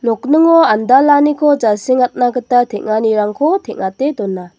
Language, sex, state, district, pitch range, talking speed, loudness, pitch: Garo, female, Meghalaya, West Garo Hills, 215-290 Hz, 90 wpm, -13 LUFS, 245 Hz